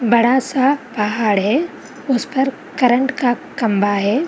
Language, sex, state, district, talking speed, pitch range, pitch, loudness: Hindi, female, Bihar, Vaishali, 140 wpm, 225-270 Hz, 250 Hz, -17 LUFS